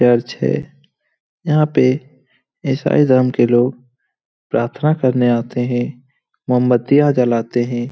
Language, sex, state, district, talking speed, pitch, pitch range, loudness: Hindi, male, Bihar, Lakhisarai, 115 wpm, 125 Hz, 120-135 Hz, -16 LUFS